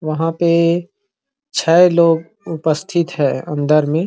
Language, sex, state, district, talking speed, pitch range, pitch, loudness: Hindi, male, Chhattisgarh, Rajnandgaon, 120 wpm, 155-180 Hz, 170 Hz, -16 LUFS